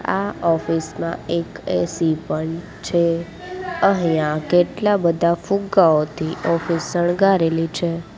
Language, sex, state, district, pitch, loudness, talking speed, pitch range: Gujarati, female, Gujarat, Gandhinagar, 170 Hz, -20 LUFS, 105 wpm, 165-180 Hz